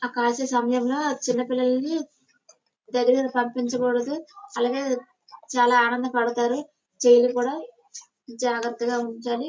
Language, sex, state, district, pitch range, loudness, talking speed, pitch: Telugu, female, Andhra Pradesh, Srikakulam, 240-275 Hz, -24 LUFS, 80 wpm, 250 Hz